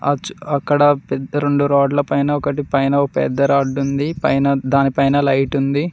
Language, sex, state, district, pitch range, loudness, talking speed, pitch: Telugu, male, Telangana, Mahabubabad, 140-145 Hz, -17 LUFS, 160 wpm, 140 Hz